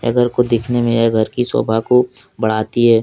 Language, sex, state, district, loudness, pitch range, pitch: Hindi, male, Jharkhand, Deoghar, -16 LUFS, 110-125 Hz, 115 Hz